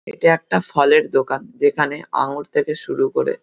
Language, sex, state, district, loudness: Bengali, male, West Bengal, Malda, -18 LUFS